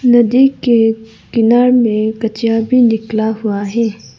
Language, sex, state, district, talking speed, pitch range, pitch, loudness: Hindi, female, Arunachal Pradesh, Lower Dibang Valley, 130 wpm, 220-240 Hz, 225 Hz, -13 LUFS